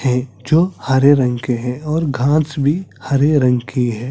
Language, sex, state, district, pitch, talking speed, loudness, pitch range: Hindi, male, Chhattisgarh, Sarguja, 135 Hz, 205 wpm, -16 LUFS, 125-150 Hz